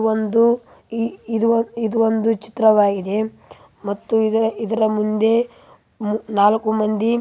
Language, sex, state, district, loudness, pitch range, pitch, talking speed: Kannada, female, Karnataka, Raichur, -19 LUFS, 215-230 Hz, 220 Hz, 75 wpm